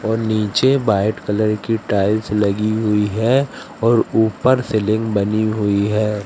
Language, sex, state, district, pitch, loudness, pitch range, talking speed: Hindi, female, Madhya Pradesh, Katni, 110 Hz, -18 LUFS, 105-110 Hz, 145 wpm